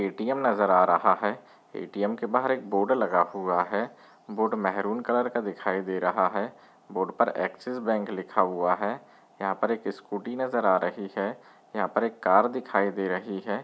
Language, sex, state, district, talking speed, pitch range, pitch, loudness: Hindi, female, Bihar, Muzaffarpur, 195 wpm, 95-120 Hz, 100 Hz, -27 LUFS